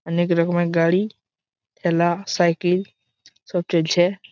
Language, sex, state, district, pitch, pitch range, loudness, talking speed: Bengali, male, West Bengal, Malda, 175 Hz, 170-180 Hz, -21 LUFS, 110 wpm